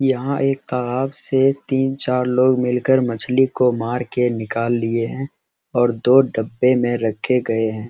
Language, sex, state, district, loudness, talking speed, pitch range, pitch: Hindi, male, Bihar, Araria, -19 LUFS, 165 wpm, 115-130 Hz, 125 Hz